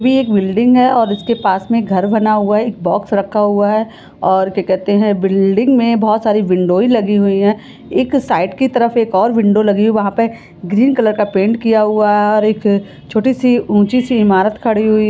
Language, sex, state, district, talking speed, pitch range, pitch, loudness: Hindi, female, Jharkhand, Sahebganj, 220 wpm, 200-230 Hz, 215 Hz, -13 LUFS